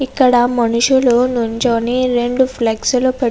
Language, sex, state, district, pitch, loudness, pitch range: Telugu, female, Andhra Pradesh, Krishna, 245 Hz, -14 LUFS, 235-255 Hz